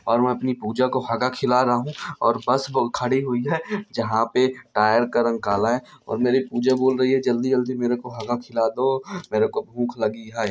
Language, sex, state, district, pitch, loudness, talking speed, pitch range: Hindi, male, Bihar, Darbhanga, 125 Hz, -22 LUFS, 225 wpm, 120-130 Hz